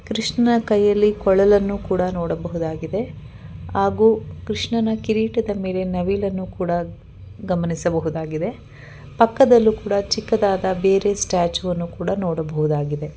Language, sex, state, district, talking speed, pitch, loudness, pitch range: Kannada, female, Karnataka, Bangalore, 90 wpm, 190 Hz, -20 LUFS, 170-210 Hz